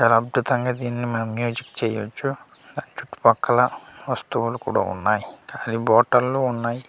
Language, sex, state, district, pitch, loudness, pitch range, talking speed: Telugu, male, Andhra Pradesh, Manyam, 120 Hz, -22 LUFS, 115-125 Hz, 130 wpm